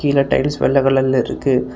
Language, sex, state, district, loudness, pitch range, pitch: Tamil, male, Tamil Nadu, Kanyakumari, -16 LUFS, 130-140 Hz, 135 Hz